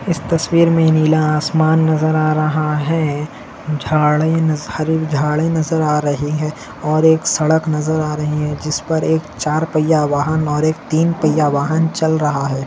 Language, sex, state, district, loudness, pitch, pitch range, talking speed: Hindi, male, Maharashtra, Nagpur, -16 LUFS, 155 Hz, 150-160 Hz, 175 wpm